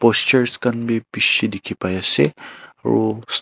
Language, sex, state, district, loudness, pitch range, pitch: Nagamese, male, Nagaland, Kohima, -18 LUFS, 110-120 Hz, 115 Hz